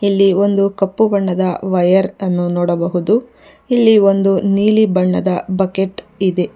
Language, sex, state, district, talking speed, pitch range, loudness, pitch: Kannada, female, Karnataka, Bangalore, 120 wpm, 185-200 Hz, -15 LUFS, 195 Hz